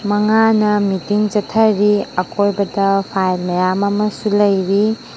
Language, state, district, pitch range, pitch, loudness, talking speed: Manipuri, Manipur, Imphal West, 195-210 Hz, 205 Hz, -16 LUFS, 95 wpm